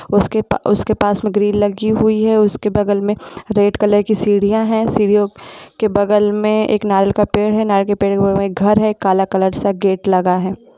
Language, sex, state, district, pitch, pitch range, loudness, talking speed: Hindi, female, Jharkhand, Jamtara, 205 Hz, 200-215 Hz, -15 LUFS, 220 wpm